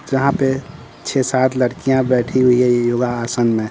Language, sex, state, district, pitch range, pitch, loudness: Hindi, male, Bihar, Patna, 120-135 Hz, 130 Hz, -17 LUFS